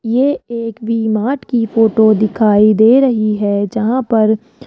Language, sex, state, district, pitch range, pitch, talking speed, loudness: Hindi, male, Rajasthan, Jaipur, 215-235 Hz, 225 Hz, 155 wpm, -13 LUFS